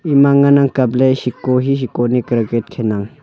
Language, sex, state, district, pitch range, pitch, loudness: Wancho, male, Arunachal Pradesh, Longding, 120-135 Hz, 130 Hz, -15 LUFS